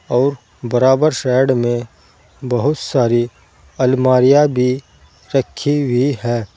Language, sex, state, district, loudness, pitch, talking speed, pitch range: Hindi, male, Uttar Pradesh, Saharanpur, -16 LUFS, 125 Hz, 100 wpm, 120-135 Hz